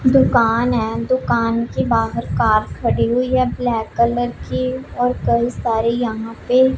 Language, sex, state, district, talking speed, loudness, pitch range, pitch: Hindi, female, Punjab, Pathankot, 150 wpm, -18 LUFS, 230-250 Hz, 240 Hz